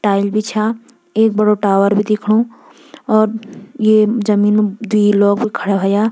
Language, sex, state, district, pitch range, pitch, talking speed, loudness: Garhwali, female, Uttarakhand, Tehri Garhwal, 205-220 Hz, 215 Hz, 155 wpm, -15 LUFS